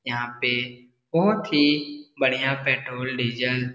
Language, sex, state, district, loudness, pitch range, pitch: Hindi, male, Bihar, Darbhanga, -23 LUFS, 125-145 Hz, 130 Hz